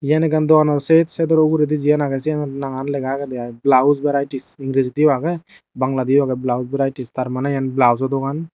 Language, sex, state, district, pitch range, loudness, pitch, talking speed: Chakma, male, Tripura, Dhalai, 130-150 Hz, -18 LUFS, 140 Hz, 185 wpm